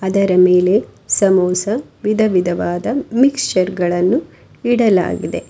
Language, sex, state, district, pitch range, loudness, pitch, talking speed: Kannada, female, Karnataka, Bangalore, 180-220 Hz, -15 LUFS, 190 Hz, 75 wpm